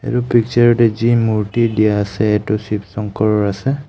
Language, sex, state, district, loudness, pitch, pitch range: Assamese, male, Assam, Kamrup Metropolitan, -16 LUFS, 110 Hz, 105-120 Hz